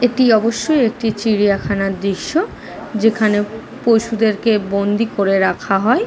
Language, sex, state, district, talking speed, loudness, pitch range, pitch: Bengali, female, West Bengal, Kolkata, 120 wpm, -16 LUFS, 200-230 Hz, 220 Hz